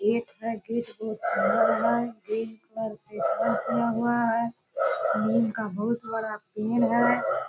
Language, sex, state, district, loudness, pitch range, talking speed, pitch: Hindi, female, Bihar, Purnia, -27 LUFS, 220-235 Hz, 90 wpm, 225 Hz